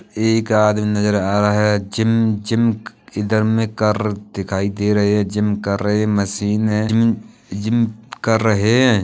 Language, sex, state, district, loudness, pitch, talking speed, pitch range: Hindi, male, Uttar Pradesh, Hamirpur, -18 LUFS, 105 Hz, 165 wpm, 105-110 Hz